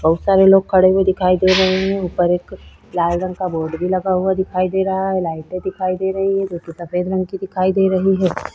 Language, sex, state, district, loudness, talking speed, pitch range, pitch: Hindi, female, Chhattisgarh, Korba, -17 LUFS, 245 wpm, 180-190 Hz, 185 Hz